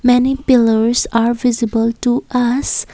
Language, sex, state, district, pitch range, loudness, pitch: English, female, Assam, Kamrup Metropolitan, 230-250 Hz, -15 LUFS, 245 Hz